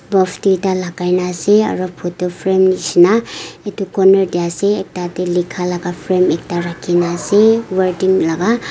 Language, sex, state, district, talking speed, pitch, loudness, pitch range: Nagamese, female, Nagaland, Kohima, 150 wpm, 185 Hz, -15 LUFS, 175-195 Hz